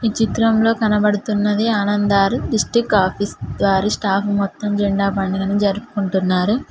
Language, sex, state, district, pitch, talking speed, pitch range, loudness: Telugu, female, Telangana, Mahabubabad, 205 Hz, 115 wpm, 195-220 Hz, -18 LUFS